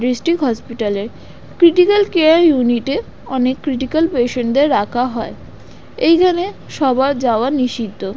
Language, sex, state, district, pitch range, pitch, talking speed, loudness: Bengali, female, West Bengal, Dakshin Dinajpur, 240-320 Hz, 260 Hz, 140 wpm, -15 LUFS